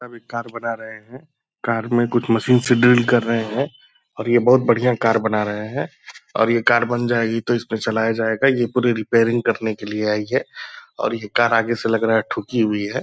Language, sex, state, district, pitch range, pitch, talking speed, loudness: Hindi, male, Bihar, Purnia, 110-120 Hz, 115 Hz, 230 wpm, -19 LUFS